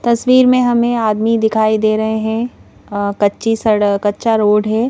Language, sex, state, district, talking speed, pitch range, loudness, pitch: Hindi, female, Madhya Pradesh, Bhopal, 170 wpm, 210-235 Hz, -14 LUFS, 220 Hz